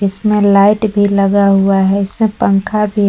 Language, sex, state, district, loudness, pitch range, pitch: Hindi, female, Jharkhand, Palamu, -12 LUFS, 195-210 Hz, 200 Hz